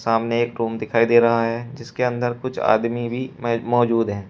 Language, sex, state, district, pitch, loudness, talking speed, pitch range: Hindi, male, Uttar Pradesh, Shamli, 120 Hz, -21 LUFS, 195 wpm, 115-120 Hz